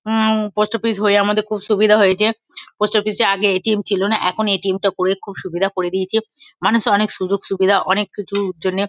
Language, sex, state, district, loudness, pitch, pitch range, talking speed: Bengali, female, West Bengal, Kolkata, -17 LUFS, 205 Hz, 195-215 Hz, 210 wpm